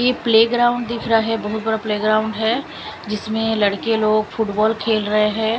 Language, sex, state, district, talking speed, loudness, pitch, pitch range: Hindi, female, Chandigarh, Chandigarh, 170 wpm, -19 LUFS, 220 Hz, 215-225 Hz